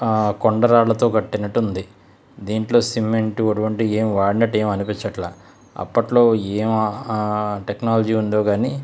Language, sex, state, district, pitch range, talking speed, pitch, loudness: Telugu, male, Andhra Pradesh, Krishna, 105-115 Hz, 115 wpm, 110 Hz, -19 LUFS